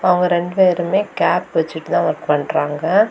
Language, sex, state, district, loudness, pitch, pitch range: Tamil, female, Tamil Nadu, Kanyakumari, -17 LUFS, 180 Hz, 170-190 Hz